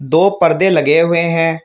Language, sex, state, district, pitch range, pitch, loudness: Hindi, male, Uttar Pradesh, Shamli, 165-170 Hz, 165 Hz, -13 LUFS